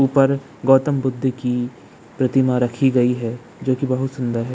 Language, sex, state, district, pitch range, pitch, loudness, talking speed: Hindi, male, Bihar, Jamui, 125-135 Hz, 130 Hz, -20 LUFS, 170 wpm